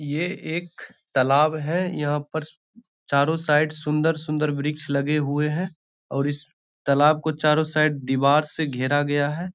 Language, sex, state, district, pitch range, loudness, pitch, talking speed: Hindi, male, Bihar, Bhagalpur, 145-160 Hz, -23 LUFS, 150 Hz, 150 wpm